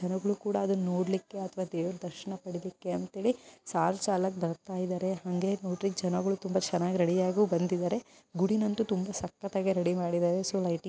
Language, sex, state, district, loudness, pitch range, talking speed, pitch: Kannada, female, Karnataka, Dharwad, -31 LUFS, 180-195 Hz, 165 wpm, 185 Hz